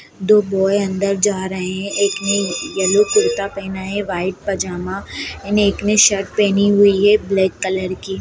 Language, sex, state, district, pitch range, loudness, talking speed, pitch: Hindi, female, Bihar, Darbhanga, 190-205 Hz, -17 LUFS, 175 wpm, 195 Hz